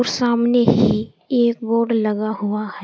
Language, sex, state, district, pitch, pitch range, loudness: Hindi, female, Uttar Pradesh, Saharanpur, 230 Hz, 215-235 Hz, -18 LUFS